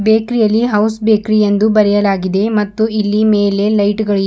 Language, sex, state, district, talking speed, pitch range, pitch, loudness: Kannada, female, Karnataka, Bidar, 140 wpm, 205-220 Hz, 210 Hz, -13 LUFS